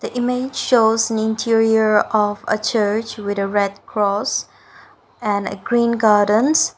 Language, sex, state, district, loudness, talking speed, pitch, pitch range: English, female, Nagaland, Dimapur, -18 LUFS, 135 wpm, 220 Hz, 205-230 Hz